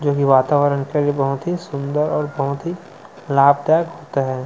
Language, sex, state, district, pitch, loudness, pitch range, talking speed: Hindi, male, Chhattisgarh, Sukma, 145 Hz, -18 LUFS, 140-155 Hz, 190 wpm